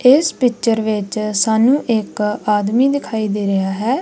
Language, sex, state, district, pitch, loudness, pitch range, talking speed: Punjabi, female, Punjab, Kapurthala, 220 Hz, -17 LUFS, 210-250 Hz, 150 wpm